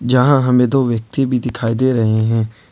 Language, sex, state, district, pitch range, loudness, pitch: Hindi, male, Jharkhand, Ranchi, 115-130 Hz, -15 LUFS, 125 Hz